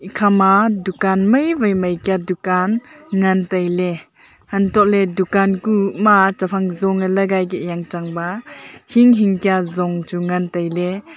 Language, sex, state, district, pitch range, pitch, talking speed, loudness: Wancho, female, Arunachal Pradesh, Longding, 180-200 Hz, 190 Hz, 140 wpm, -17 LUFS